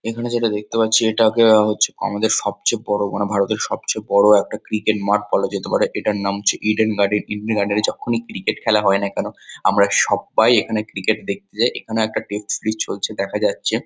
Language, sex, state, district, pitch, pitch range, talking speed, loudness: Bengali, male, West Bengal, Kolkata, 105 Hz, 100-110 Hz, 210 wpm, -19 LUFS